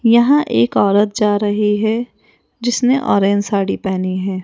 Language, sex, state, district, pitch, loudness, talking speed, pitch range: Hindi, female, Rajasthan, Jaipur, 210 Hz, -16 LUFS, 150 wpm, 195-235 Hz